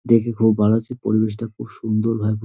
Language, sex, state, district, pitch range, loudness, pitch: Bengali, male, West Bengal, Dakshin Dinajpur, 110-115 Hz, -20 LUFS, 110 Hz